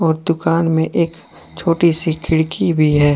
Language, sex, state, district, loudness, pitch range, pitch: Hindi, male, Jharkhand, Deoghar, -16 LUFS, 160-170 Hz, 165 Hz